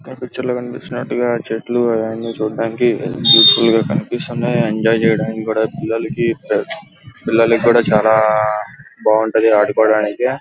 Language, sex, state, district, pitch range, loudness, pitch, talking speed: Telugu, male, Andhra Pradesh, Guntur, 110-120 Hz, -15 LUFS, 115 Hz, 115 wpm